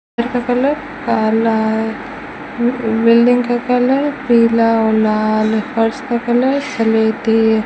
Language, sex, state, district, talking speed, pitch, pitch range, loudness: Hindi, female, Rajasthan, Bikaner, 125 wpm, 235 Hz, 225-250 Hz, -15 LUFS